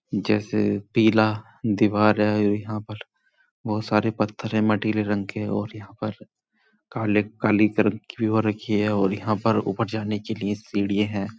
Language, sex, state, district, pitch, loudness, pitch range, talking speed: Hindi, male, Uttar Pradesh, Muzaffarnagar, 105 Hz, -23 LUFS, 105-110 Hz, 140 wpm